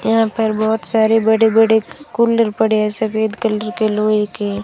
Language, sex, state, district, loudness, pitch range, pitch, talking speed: Hindi, female, Rajasthan, Jaisalmer, -16 LUFS, 215-225 Hz, 220 Hz, 180 wpm